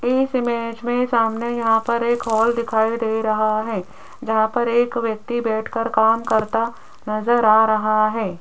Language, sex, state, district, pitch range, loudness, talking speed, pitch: Hindi, female, Rajasthan, Jaipur, 220-235 Hz, -19 LUFS, 165 wpm, 225 Hz